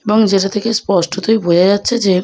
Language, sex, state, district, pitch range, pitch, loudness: Bengali, female, West Bengal, Jalpaiguri, 190-220 Hz, 200 Hz, -14 LUFS